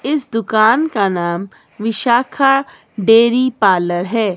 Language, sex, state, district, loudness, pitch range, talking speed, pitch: Hindi, female, Himachal Pradesh, Shimla, -15 LUFS, 200-255 Hz, 110 wpm, 225 Hz